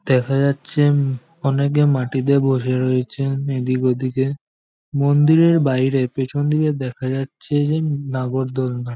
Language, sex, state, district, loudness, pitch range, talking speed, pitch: Bengali, male, West Bengal, Jhargram, -19 LUFS, 130-145 Hz, 115 wpm, 135 Hz